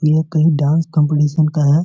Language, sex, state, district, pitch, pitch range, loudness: Hindi, male, Bihar, Muzaffarpur, 155 Hz, 150-160 Hz, -15 LUFS